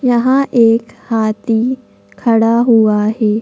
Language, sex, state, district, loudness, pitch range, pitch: Hindi, female, Madhya Pradesh, Bhopal, -13 LUFS, 220-245 Hz, 230 Hz